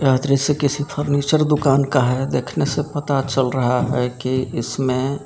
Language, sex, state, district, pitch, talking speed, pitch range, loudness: Hindi, male, Jharkhand, Garhwa, 135 Hz, 170 wpm, 130-145 Hz, -19 LUFS